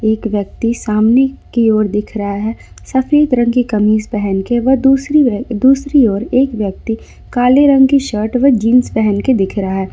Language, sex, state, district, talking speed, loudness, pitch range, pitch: Hindi, female, Jharkhand, Ranchi, 185 wpm, -13 LUFS, 210-265 Hz, 230 Hz